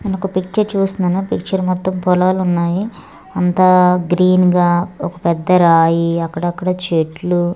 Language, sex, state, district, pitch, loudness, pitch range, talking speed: Telugu, female, Andhra Pradesh, Manyam, 180 Hz, -15 LUFS, 175-185 Hz, 110 wpm